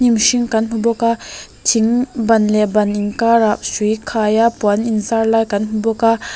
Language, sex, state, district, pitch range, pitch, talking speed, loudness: Mizo, female, Mizoram, Aizawl, 215-230 Hz, 225 Hz, 200 wpm, -16 LUFS